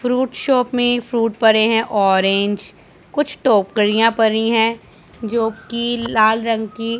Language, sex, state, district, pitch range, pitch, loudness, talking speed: Hindi, female, Punjab, Pathankot, 215-235 Hz, 225 Hz, -17 LUFS, 135 wpm